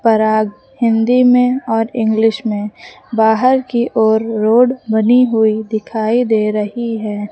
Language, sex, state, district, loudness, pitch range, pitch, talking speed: Hindi, female, Uttar Pradesh, Lucknow, -14 LUFS, 220-240 Hz, 225 Hz, 130 wpm